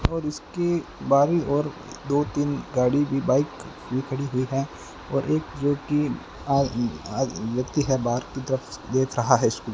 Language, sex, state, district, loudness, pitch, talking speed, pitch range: Hindi, male, Rajasthan, Bikaner, -25 LUFS, 135 Hz, 175 wpm, 130-145 Hz